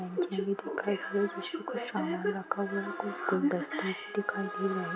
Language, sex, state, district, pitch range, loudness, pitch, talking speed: Bhojpuri, female, Bihar, Saran, 200-205 Hz, -33 LUFS, 205 Hz, 220 wpm